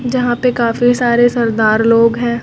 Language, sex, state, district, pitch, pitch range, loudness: Hindi, female, Uttar Pradesh, Lucknow, 240 Hz, 230-245 Hz, -13 LUFS